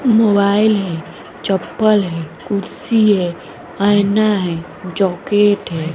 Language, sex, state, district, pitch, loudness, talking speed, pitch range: Hindi, female, Bihar, West Champaran, 200 Hz, -16 LUFS, 100 wpm, 175-210 Hz